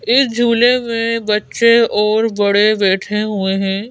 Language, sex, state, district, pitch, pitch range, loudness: Hindi, female, Madhya Pradesh, Bhopal, 215 Hz, 205-230 Hz, -14 LUFS